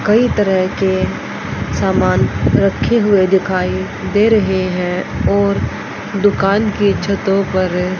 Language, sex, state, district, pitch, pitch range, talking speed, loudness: Hindi, female, Haryana, Rohtak, 190 Hz, 180-200 Hz, 110 wpm, -15 LUFS